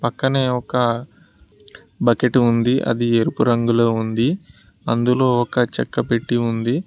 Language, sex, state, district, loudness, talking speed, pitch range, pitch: Telugu, male, Telangana, Mahabubabad, -19 LUFS, 115 wpm, 115-125 Hz, 120 Hz